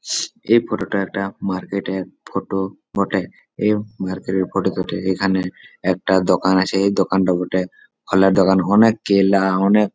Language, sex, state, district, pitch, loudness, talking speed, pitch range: Bengali, male, West Bengal, Malda, 95 Hz, -19 LUFS, 165 wpm, 95-100 Hz